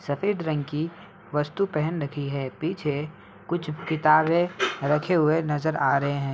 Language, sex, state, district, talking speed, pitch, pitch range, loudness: Hindi, male, Uttar Pradesh, Ghazipur, 150 wpm, 155 Hz, 145-165 Hz, -25 LUFS